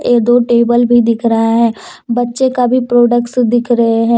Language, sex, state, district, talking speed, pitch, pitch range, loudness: Hindi, female, Jharkhand, Deoghar, 215 wpm, 240 Hz, 235-245 Hz, -12 LUFS